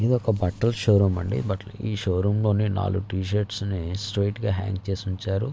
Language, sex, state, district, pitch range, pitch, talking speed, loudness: Telugu, male, Andhra Pradesh, Visakhapatnam, 95-105 Hz, 100 Hz, 195 wpm, -25 LUFS